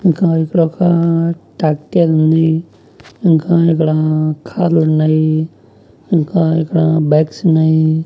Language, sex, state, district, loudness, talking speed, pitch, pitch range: Telugu, male, Andhra Pradesh, Annamaya, -14 LUFS, 105 wpm, 160 Hz, 155-170 Hz